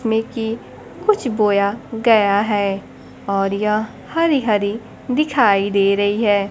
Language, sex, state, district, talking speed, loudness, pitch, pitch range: Hindi, female, Bihar, Kaimur, 130 wpm, -18 LUFS, 210 Hz, 200-230 Hz